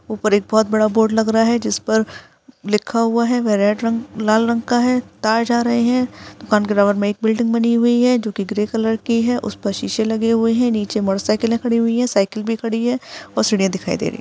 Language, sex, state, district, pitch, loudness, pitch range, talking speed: Hindi, female, Bihar, Jamui, 225 Hz, -18 LUFS, 215-235 Hz, 255 wpm